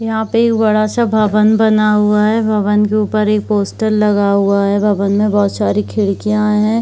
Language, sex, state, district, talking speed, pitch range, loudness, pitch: Hindi, female, Jharkhand, Jamtara, 200 wpm, 205-215 Hz, -13 LUFS, 210 Hz